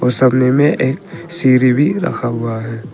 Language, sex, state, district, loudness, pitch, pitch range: Hindi, male, Arunachal Pradesh, Papum Pare, -14 LUFS, 130 Hz, 125-145 Hz